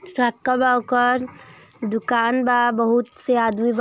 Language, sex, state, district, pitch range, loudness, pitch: Hindi, female, Uttar Pradesh, Ghazipur, 235-250 Hz, -20 LUFS, 245 Hz